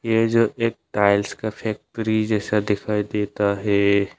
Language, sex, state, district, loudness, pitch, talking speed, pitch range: Hindi, male, Arunachal Pradesh, Longding, -22 LUFS, 105 Hz, 145 wpm, 100-110 Hz